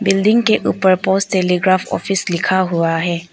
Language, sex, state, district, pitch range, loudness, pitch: Hindi, female, Arunachal Pradesh, Papum Pare, 175-195 Hz, -16 LUFS, 185 Hz